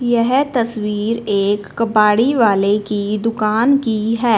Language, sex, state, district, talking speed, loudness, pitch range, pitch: Hindi, female, Punjab, Fazilka, 125 wpm, -16 LUFS, 210-235 Hz, 220 Hz